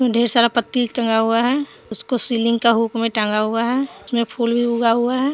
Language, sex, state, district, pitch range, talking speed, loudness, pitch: Hindi, female, Jharkhand, Deoghar, 230-245 Hz, 215 wpm, -18 LUFS, 235 Hz